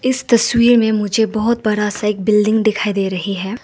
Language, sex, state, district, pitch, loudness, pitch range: Hindi, female, Arunachal Pradesh, Lower Dibang Valley, 215 Hz, -15 LUFS, 210-235 Hz